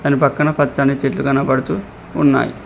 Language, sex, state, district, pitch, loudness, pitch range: Telugu, male, Telangana, Mahabubabad, 140 Hz, -16 LUFS, 135-145 Hz